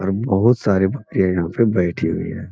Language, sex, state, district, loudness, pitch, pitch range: Hindi, male, Bihar, Jamui, -19 LUFS, 95 Hz, 90-105 Hz